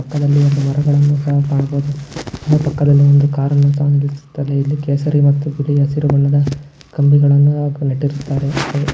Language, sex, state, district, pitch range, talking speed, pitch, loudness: Kannada, male, Karnataka, Bijapur, 140-145 Hz, 125 wpm, 145 Hz, -15 LUFS